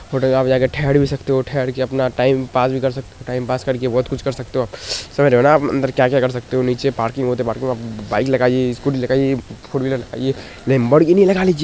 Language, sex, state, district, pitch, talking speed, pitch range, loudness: Hindi, male, Bihar, Purnia, 130 Hz, 255 wpm, 125-135 Hz, -18 LUFS